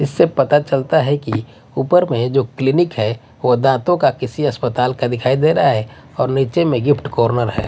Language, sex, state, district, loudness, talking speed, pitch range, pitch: Hindi, male, Odisha, Nuapada, -16 LUFS, 205 wpm, 120-145 Hz, 135 Hz